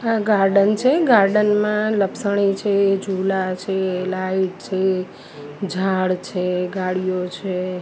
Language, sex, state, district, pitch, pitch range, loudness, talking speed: Gujarati, female, Gujarat, Gandhinagar, 190 Hz, 185-200 Hz, -20 LUFS, 115 wpm